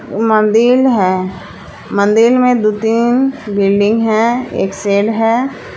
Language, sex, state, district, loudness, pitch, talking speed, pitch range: Hindi, female, Jharkhand, Palamu, -13 LUFS, 225 Hz, 115 wpm, 205-245 Hz